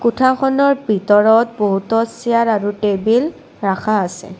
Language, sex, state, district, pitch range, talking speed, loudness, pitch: Assamese, female, Assam, Kamrup Metropolitan, 205-240 Hz, 110 wpm, -16 LUFS, 220 Hz